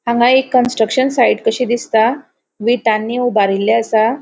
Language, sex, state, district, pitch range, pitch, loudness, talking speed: Konkani, female, Goa, North and South Goa, 220-250 Hz, 235 Hz, -14 LUFS, 130 wpm